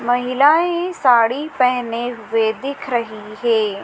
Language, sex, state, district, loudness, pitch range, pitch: Hindi, female, Madhya Pradesh, Dhar, -18 LUFS, 225-275 Hz, 245 Hz